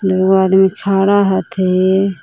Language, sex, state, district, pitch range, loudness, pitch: Magahi, female, Jharkhand, Palamu, 190-195 Hz, -13 LUFS, 190 Hz